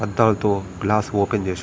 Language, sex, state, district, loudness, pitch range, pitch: Telugu, male, Andhra Pradesh, Srikakulam, -21 LUFS, 100-105 Hz, 105 Hz